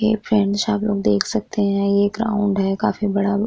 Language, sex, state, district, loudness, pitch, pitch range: Hindi, female, Bihar, Vaishali, -19 LUFS, 205 Hz, 200-210 Hz